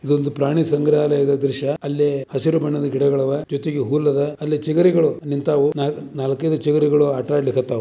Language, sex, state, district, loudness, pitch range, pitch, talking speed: Kannada, male, Karnataka, Dharwad, -19 LUFS, 140-150 Hz, 145 Hz, 130 wpm